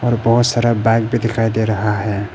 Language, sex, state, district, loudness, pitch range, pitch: Hindi, male, Arunachal Pradesh, Papum Pare, -16 LUFS, 110-120 Hz, 115 Hz